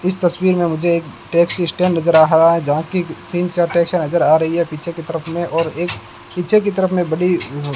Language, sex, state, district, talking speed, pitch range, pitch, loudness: Hindi, male, Rajasthan, Bikaner, 240 wpm, 160-180 Hz, 170 Hz, -16 LUFS